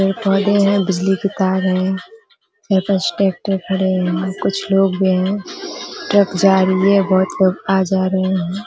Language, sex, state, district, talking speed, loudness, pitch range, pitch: Hindi, female, Uttar Pradesh, Ghazipur, 180 wpm, -16 LUFS, 185-195 Hz, 190 Hz